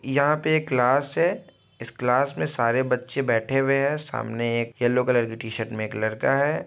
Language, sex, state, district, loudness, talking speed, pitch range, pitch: Hindi, male, Bihar, Muzaffarpur, -24 LUFS, 200 wpm, 115-135 Hz, 125 Hz